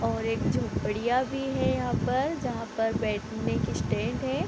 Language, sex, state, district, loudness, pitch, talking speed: Hindi, female, Bihar, Sitamarhi, -29 LUFS, 225 Hz, 175 wpm